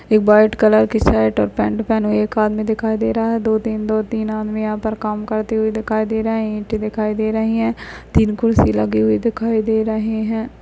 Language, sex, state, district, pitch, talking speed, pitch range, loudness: Hindi, female, Bihar, Jahanabad, 220 Hz, 235 wpm, 215-220 Hz, -18 LUFS